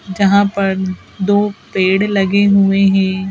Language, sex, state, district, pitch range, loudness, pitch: Hindi, female, Madhya Pradesh, Bhopal, 190-200 Hz, -14 LUFS, 195 Hz